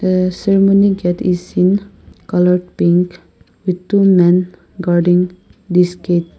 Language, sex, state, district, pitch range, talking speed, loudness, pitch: English, female, Nagaland, Kohima, 175-190 Hz, 140 wpm, -14 LUFS, 180 Hz